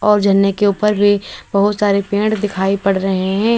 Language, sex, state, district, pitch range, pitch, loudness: Hindi, female, Uttar Pradesh, Lalitpur, 195-210 Hz, 200 Hz, -15 LUFS